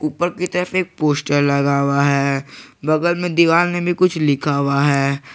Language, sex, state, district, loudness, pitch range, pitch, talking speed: Hindi, male, Jharkhand, Garhwa, -17 LUFS, 140-175 Hz, 150 Hz, 190 wpm